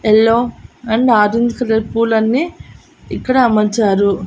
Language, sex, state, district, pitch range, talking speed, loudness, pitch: Telugu, female, Andhra Pradesh, Annamaya, 215-240 Hz, 100 wpm, -14 LUFS, 225 Hz